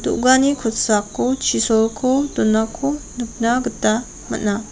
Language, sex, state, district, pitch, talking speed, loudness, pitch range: Garo, female, Meghalaya, West Garo Hills, 230 Hz, 90 wpm, -19 LUFS, 220-260 Hz